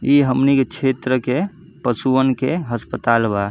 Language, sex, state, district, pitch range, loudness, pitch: Bhojpuri, male, Uttar Pradesh, Deoria, 120-140 Hz, -18 LUFS, 130 Hz